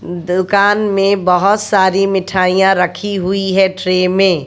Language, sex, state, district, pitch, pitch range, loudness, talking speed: Hindi, female, Bihar, West Champaran, 190 Hz, 185-195 Hz, -13 LUFS, 135 wpm